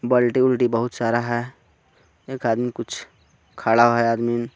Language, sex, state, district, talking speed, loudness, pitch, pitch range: Hindi, male, Jharkhand, Garhwa, 145 wpm, -21 LUFS, 120 Hz, 115-125 Hz